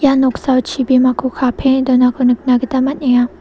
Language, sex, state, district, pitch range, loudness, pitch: Garo, female, Meghalaya, South Garo Hills, 250-265 Hz, -14 LUFS, 255 Hz